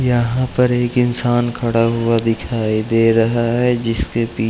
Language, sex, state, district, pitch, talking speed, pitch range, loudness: Hindi, male, Uttarakhand, Uttarkashi, 115 Hz, 175 wpm, 115-120 Hz, -17 LUFS